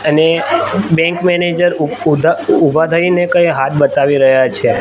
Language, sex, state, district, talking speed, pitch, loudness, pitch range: Gujarati, male, Gujarat, Gandhinagar, 150 wpm, 165 Hz, -12 LUFS, 150-175 Hz